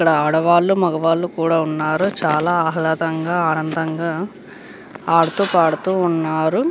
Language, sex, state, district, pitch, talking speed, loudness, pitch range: Telugu, female, Andhra Pradesh, Chittoor, 165 Hz, 100 wpm, -18 LUFS, 160-175 Hz